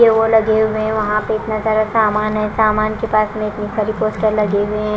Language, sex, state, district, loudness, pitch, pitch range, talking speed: Hindi, female, Punjab, Kapurthala, -16 LUFS, 215 Hz, 210-220 Hz, 255 wpm